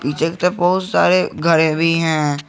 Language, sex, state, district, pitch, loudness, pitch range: Hindi, male, Jharkhand, Garhwa, 165 Hz, -16 LUFS, 155-175 Hz